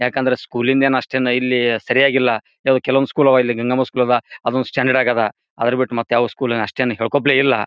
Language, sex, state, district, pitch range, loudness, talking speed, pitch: Kannada, male, Karnataka, Gulbarga, 120-130 Hz, -17 LUFS, 170 wpm, 125 Hz